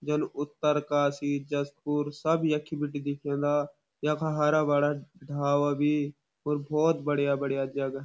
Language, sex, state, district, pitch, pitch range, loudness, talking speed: Garhwali, male, Uttarakhand, Uttarkashi, 145 Hz, 145-150 Hz, -28 LUFS, 120 wpm